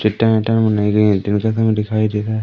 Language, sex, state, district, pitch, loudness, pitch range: Hindi, male, Madhya Pradesh, Umaria, 110 Hz, -16 LUFS, 105-110 Hz